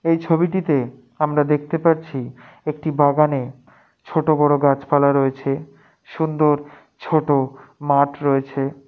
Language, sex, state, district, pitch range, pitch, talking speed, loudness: Bengali, male, West Bengal, Dakshin Dinajpur, 135-155 Hz, 145 Hz, 110 wpm, -19 LUFS